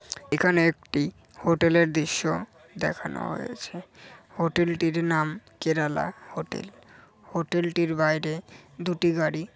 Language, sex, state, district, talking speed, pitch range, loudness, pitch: Bengali, male, West Bengal, Jhargram, 90 wpm, 155-170 Hz, -26 LUFS, 165 Hz